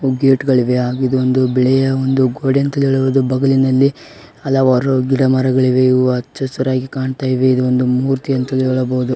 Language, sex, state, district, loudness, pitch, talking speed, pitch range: Kannada, male, Karnataka, Raichur, -15 LUFS, 130 Hz, 130 wpm, 130-135 Hz